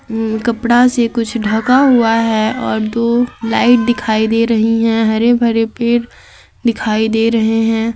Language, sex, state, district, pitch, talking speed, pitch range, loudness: Hindi, female, Jharkhand, Garhwa, 230 Hz, 160 wpm, 225-235 Hz, -14 LUFS